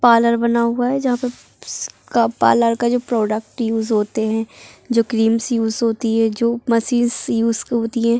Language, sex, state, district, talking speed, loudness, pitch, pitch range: Hindi, female, Chhattisgarh, Bilaspur, 190 wpm, -18 LUFS, 230 Hz, 225-235 Hz